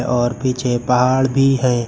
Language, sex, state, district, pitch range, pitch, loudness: Hindi, male, Uttar Pradesh, Lucknow, 120-130 Hz, 125 Hz, -17 LUFS